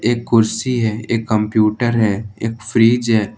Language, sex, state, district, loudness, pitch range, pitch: Hindi, male, Jharkhand, Ranchi, -17 LUFS, 110-120 Hz, 115 Hz